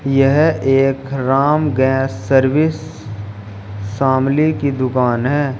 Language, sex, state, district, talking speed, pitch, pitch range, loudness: Hindi, male, Uttar Pradesh, Shamli, 95 wpm, 135 Hz, 125-140 Hz, -15 LUFS